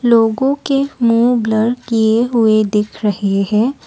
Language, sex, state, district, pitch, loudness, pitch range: Hindi, female, Assam, Kamrup Metropolitan, 230 Hz, -15 LUFS, 215-245 Hz